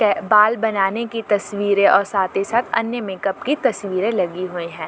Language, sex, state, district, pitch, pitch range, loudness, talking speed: Hindi, female, Jharkhand, Jamtara, 205 Hz, 195-230 Hz, -19 LUFS, 195 wpm